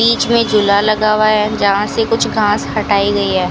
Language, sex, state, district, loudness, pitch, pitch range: Hindi, female, Rajasthan, Bikaner, -13 LUFS, 210 Hz, 200-225 Hz